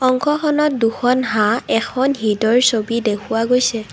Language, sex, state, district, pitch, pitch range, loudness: Assamese, female, Assam, Kamrup Metropolitan, 245 Hz, 225-260 Hz, -17 LUFS